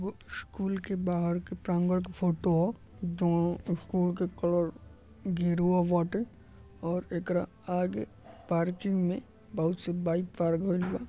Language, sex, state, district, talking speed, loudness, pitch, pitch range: Bhojpuri, male, Uttar Pradesh, Deoria, 135 wpm, -31 LUFS, 175 Hz, 170-185 Hz